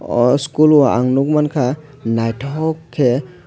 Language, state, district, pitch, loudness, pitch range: Kokborok, Tripura, West Tripura, 140 Hz, -16 LUFS, 125-150 Hz